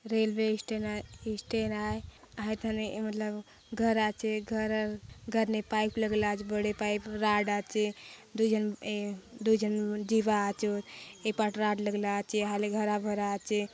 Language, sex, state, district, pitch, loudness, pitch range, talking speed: Halbi, female, Chhattisgarh, Bastar, 215 Hz, -32 LUFS, 210-220 Hz, 155 wpm